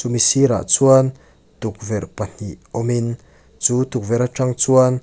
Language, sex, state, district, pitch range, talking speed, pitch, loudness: Mizo, male, Mizoram, Aizawl, 110-130 Hz, 120 wpm, 120 Hz, -18 LUFS